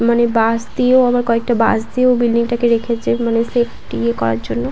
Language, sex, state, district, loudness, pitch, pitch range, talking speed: Bengali, female, West Bengal, Paschim Medinipur, -16 LUFS, 235 Hz, 230-240 Hz, 190 wpm